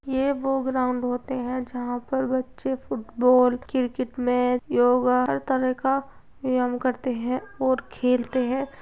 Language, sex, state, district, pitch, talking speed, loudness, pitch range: Hindi, male, Uttar Pradesh, Etah, 255 Hz, 145 wpm, -24 LUFS, 250-265 Hz